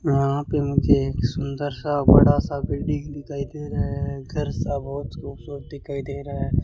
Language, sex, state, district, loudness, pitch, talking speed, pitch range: Hindi, male, Rajasthan, Bikaner, -23 LUFS, 140 Hz, 190 wpm, 140-145 Hz